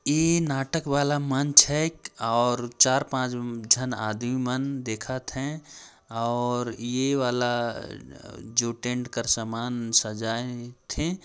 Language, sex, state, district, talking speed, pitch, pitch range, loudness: Hindi, male, Chhattisgarh, Jashpur, 115 wpm, 125 Hz, 115-140 Hz, -25 LUFS